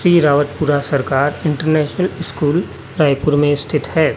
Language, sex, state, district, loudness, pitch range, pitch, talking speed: Hindi, male, Chhattisgarh, Raipur, -16 LUFS, 145-160 Hz, 150 Hz, 130 wpm